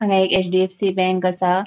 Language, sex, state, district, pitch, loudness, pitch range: Konkani, female, Goa, North and South Goa, 185 Hz, -19 LUFS, 185-190 Hz